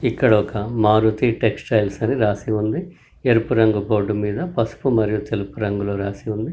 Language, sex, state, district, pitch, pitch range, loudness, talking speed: Telugu, male, Telangana, Karimnagar, 110 Hz, 105-115 Hz, -20 LUFS, 165 wpm